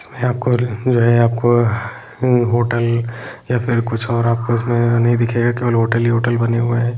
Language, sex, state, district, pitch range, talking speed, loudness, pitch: Hindi, male, Bihar, Jahanabad, 115-120 Hz, 180 wpm, -16 LUFS, 120 Hz